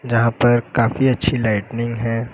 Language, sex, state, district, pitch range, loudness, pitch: Hindi, male, Uttar Pradesh, Lucknow, 115-120 Hz, -18 LUFS, 115 Hz